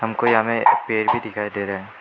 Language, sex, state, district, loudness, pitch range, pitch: Hindi, male, Arunachal Pradesh, Lower Dibang Valley, -20 LUFS, 105-115 Hz, 110 Hz